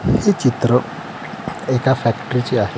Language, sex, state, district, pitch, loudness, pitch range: Marathi, male, Maharashtra, Pune, 125 Hz, -18 LUFS, 120-130 Hz